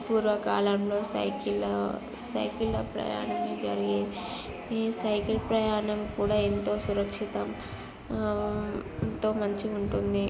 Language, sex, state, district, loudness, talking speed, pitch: Telugu, female, Telangana, Karimnagar, -30 LUFS, 80 wpm, 200 Hz